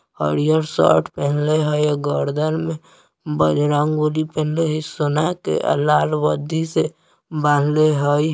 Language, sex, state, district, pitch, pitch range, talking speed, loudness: Bajjika, male, Bihar, Vaishali, 150 Hz, 145-155 Hz, 135 wpm, -19 LUFS